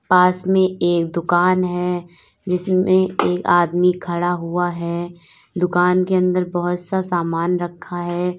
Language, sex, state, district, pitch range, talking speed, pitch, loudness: Hindi, female, Uttar Pradesh, Lalitpur, 175-180 Hz, 135 wpm, 180 Hz, -19 LUFS